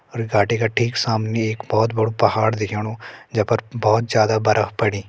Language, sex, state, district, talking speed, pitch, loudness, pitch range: Hindi, male, Uttarakhand, Uttarkashi, 175 wpm, 110 Hz, -20 LUFS, 110-115 Hz